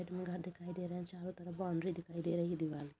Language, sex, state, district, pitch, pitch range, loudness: Hindi, female, Uttar Pradesh, Budaun, 175 Hz, 170-180 Hz, -41 LUFS